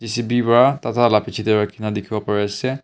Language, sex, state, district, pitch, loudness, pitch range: Nagamese, male, Nagaland, Kohima, 110 Hz, -19 LUFS, 105-120 Hz